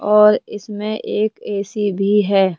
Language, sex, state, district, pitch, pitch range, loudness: Hindi, male, Rajasthan, Jaipur, 210 Hz, 200-210 Hz, -18 LUFS